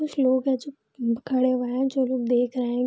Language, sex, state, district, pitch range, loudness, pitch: Hindi, female, Bihar, Madhepura, 245-265 Hz, -24 LUFS, 255 Hz